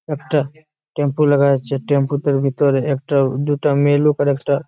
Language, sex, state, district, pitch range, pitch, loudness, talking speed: Bengali, male, West Bengal, Malda, 140-150 Hz, 145 Hz, -17 LUFS, 165 wpm